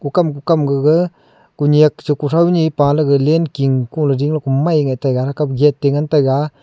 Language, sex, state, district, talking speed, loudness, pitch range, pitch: Wancho, male, Arunachal Pradesh, Longding, 210 wpm, -15 LUFS, 140-155 Hz, 145 Hz